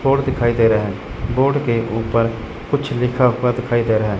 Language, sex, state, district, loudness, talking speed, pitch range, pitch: Hindi, male, Chandigarh, Chandigarh, -18 LUFS, 215 wpm, 115-125 Hz, 120 Hz